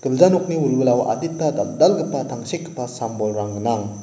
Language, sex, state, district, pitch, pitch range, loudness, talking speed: Garo, male, Meghalaya, West Garo Hills, 125 Hz, 105-165 Hz, -20 LUFS, 120 wpm